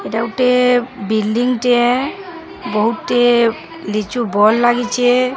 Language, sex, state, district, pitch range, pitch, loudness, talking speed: Odia, male, Odisha, Sambalpur, 225-250 Hz, 245 Hz, -15 LUFS, 100 wpm